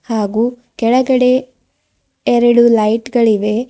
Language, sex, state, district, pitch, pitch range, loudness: Kannada, female, Karnataka, Bidar, 240 Hz, 225-250 Hz, -13 LUFS